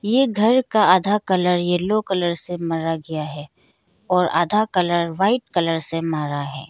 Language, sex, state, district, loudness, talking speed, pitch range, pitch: Hindi, female, Arunachal Pradesh, Lower Dibang Valley, -20 LUFS, 170 wpm, 165-210 Hz, 175 Hz